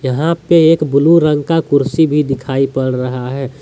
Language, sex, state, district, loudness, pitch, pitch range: Hindi, male, Jharkhand, Deoghar, -13 LUFS, 140 Hz, 135-160 Hz